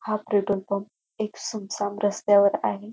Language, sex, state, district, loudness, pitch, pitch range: Marathi, female, Maharashtra, Dhule, -25 LUFS, 205 Hz, 200-215 Hz